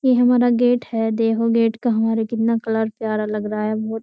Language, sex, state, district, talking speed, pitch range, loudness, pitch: Hindi, female, Uttar Pradesh, Jyotiba Phule Nagar, 240 wpm, 220-230 Hz, -19 LUFS, 225 Hz